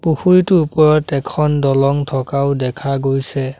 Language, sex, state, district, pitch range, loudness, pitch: Assamese, male, Assam, Sonitpur, 135-155 Hz, -15 LUFS, 140 Hz